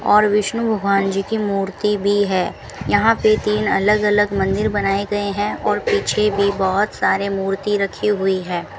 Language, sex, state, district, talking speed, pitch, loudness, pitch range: Hindi, female, Rajasthan, Bikaner, 175 wpm, 205 Hz, -18 LUFS, 195-210 Hz